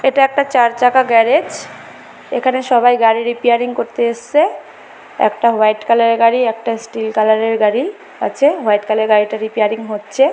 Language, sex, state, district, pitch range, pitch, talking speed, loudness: Bengali, female, West Bengal, Kolkata, 220-255 Hz, 230 Hz, 175 wpm, -14 LUFS